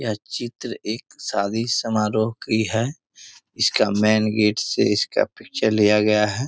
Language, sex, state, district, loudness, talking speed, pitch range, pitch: Hindi, male, Bihar, Muzaffarpur, -21 LUFS, 150 wpm, 105-115 Hz, 110 Hz